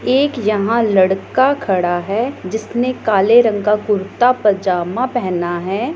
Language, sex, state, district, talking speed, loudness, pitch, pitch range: Hindi, female, Punjab, Pathankot, 130 wpm, -16 LUFS, 215 Hz, 190-245 Hz